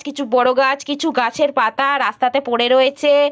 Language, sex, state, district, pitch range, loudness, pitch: Bengali, female, West Bengal, Jalpaiguri, 255-285 Hz, -16 LUFS, 275 Hz